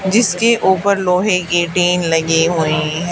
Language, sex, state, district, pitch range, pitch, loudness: Hindi, female, Haryana, Charkhi Dadri, 165-190 Hz, 180 Hz, -14 LUFS